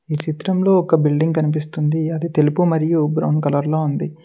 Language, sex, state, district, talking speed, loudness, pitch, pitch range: Telugu, male, Telangana, Mahabubabad, 155 wpm, -18 LUFS, 155 Hz, 150-165 Hz